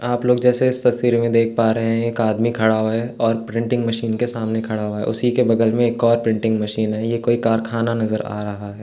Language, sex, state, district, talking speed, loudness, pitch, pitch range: Hindi, male, Uttarakhand, Tehri Garhwal, 260 wpm, -19 LUFS, 115 Hz, 110-120 Hz